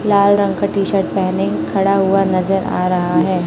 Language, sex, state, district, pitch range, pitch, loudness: Hindi, male, Chhattisgarh, Raipur, 185-195 Hz, 190 Hz, -16 LUFS